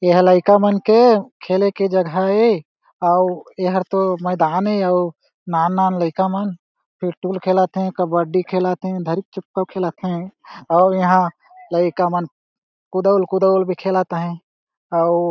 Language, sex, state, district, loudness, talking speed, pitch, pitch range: Chhattisgarhi, male, Chhattisgarh, Jashpur, -18 LUFS, 140 wpm, 185 Hz, 175-190 Hz